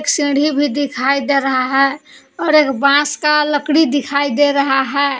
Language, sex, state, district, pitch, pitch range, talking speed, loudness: Hindi, female, Jharkhand, Palamu, 285 Hz, 275-295 Hz, 175 wpm, -15 LUFS